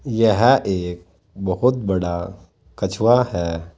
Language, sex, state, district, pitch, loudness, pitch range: Hindi, male, Uttar Pradesh, Saharanpur, 95 Hz, -19 LUFS, 90-115 Hz